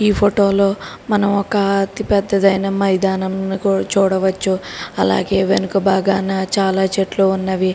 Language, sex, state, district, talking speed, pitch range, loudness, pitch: Telugu, female, Telangana, Karimnagar, 110 wpm, 190-200 Hz, -17 LUFS, 195 Hz